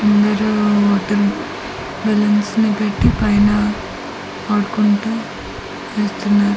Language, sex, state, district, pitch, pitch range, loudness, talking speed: Telugu, female, Andhra Pradesh, Manyam, 210 Hz, 205-210 Hz, -17 LUFS, 80 wpm